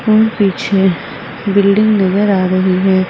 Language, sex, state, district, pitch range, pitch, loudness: Hindi, female, Uttar Pradesh, Saharanpur, 185-205 Hz, 195 Hz, -13 LUFS